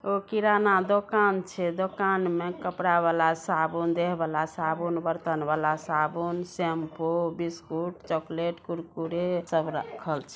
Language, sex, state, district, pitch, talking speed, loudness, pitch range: Maithili, female, Bihar, Samastipur, 170 Hz, 135 wpm, -27 LUFS, 165-180 Hz